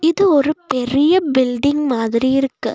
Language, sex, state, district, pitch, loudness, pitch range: Tamil, female, Tamil Nadu, Nilgiris, 275 Hz, -16 LUFS, 250-310 Hz